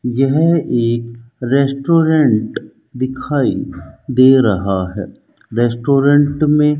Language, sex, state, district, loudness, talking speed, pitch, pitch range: Hindi, male, Rajasthan, Bikaner, -15 LUFS, 90 wpm, 130 Hz, 115-145 Hz